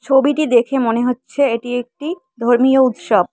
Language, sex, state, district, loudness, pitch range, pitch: Bengali, female, West Bengal, Cooch Behar, -16 LUFS, 240-275 Hz, 255 Hz